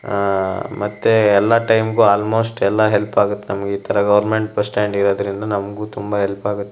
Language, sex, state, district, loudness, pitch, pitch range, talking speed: Kannada, male, Karnataka, Shimoga, -17 LUFS, 105 Hz, 100-110 Hz, 170 wpm